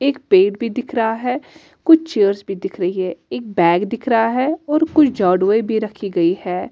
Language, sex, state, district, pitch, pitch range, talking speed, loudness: Hindi, female, Delhi, New Delhi, 220 Hz, 190-255 Hz, 215 wpm, -17 LUFS